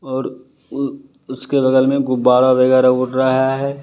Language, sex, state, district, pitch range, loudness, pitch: Hindi, male, Bihar, West Champaran, 130-135 Hz, -15 LUFS, 130 Hz